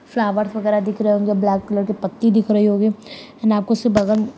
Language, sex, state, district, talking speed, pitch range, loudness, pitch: Hindi, female, Bihar, Sitamarhi, 205 wpm, 210-220 Hz, -18 LUFS, 210 Hz